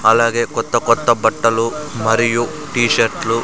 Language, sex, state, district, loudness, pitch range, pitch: Telugu, male, Andhra Pradesh, Sri Satya Sai, -16 LUFS, 115-120 Hz, 115 Hz